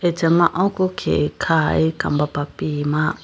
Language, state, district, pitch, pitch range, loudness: Idu Mishmi, Arunachal Pradesh, Lower Dibang Valley, 155 Hz, 145-175 Hz, -19 LUFS